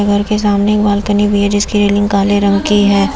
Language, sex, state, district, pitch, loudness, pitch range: Hindi, female, Uttar Pradesh, Lucknow, 205 Hz, -12 LUFS, 200-205 Hz